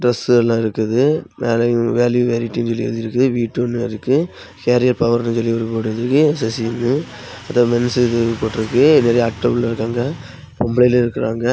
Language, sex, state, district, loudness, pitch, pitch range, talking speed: Tamil, male, Tamil Nadu, Kanyakumari, -17 LUFS, 120 Hz, 115-125 Hz, 150 wpm